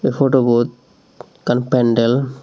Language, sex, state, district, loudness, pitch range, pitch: Chakma, male, Tripura, Dhalai, -16 LUFS, 120-130 Hz, 125 Hz